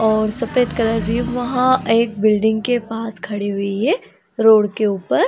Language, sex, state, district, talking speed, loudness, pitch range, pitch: Hindi, female, Bihar, Saran, 150 wpm, -18 LUFS, 215-245 Hz, 225 Hz